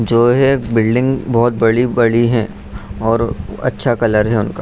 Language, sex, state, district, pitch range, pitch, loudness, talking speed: Hindi, male, Bihar, Saharsa, 115-120 Hz, 115 Hz, -15 LUFS, 155 wpm